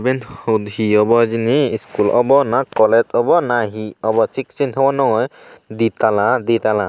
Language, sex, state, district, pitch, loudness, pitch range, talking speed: Chakma, male, Tripura, Unakoti, 115 Hz, -16 LUFS, 110-130 Hz, 190 wpm